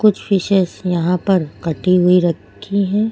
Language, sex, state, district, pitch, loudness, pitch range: Hindi, female, Uttar Pradesh, Lucknow, 185 Hz, -16 LUFS, 175-200 Hz